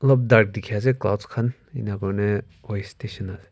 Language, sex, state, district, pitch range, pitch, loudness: Nagamese, male, Nagaland, Kohima, 100-120 Hz, 105 Hz, -23 LUFS